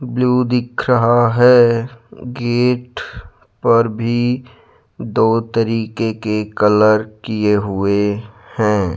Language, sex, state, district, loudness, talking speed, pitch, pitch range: Hindi, male, Rajasthan, Jaipur, -16 LUFS, 95 wpm, 115 Hz, 105-120 Hz